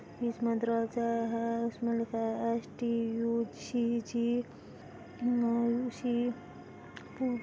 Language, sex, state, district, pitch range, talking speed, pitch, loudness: Hindi, female, Uttar Pradesh, Etah, 230-240 Hz, 65 wpm, 235 Hz, -33 LUFS